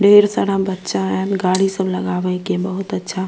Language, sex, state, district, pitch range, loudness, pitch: Maithili, female, Bihar, Purnia, 185-195 Hz, -18 LUFS, 190 Hz